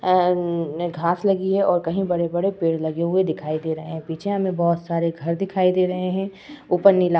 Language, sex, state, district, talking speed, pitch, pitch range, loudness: Hindi, female, Uttar Pradesh, Etah, 225 wpm, 175 Hz, 170-190 Hz, -22 LUFS